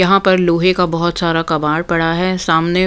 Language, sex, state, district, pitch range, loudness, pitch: Hindi, female, Punjab, Pathankot, 165-185 Hz, -15 LUFS, 170 Hz